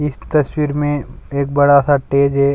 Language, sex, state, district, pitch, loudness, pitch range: Hindi, male, Chhattisgarh, Sukma, 140 Hz, -16 LUFS, 140-145 Hz